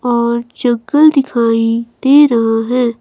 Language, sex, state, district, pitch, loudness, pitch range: Hindi, female, Himachal Pradesh, Shimla, 235 Hz, -12 LUFS, 230-255 Hz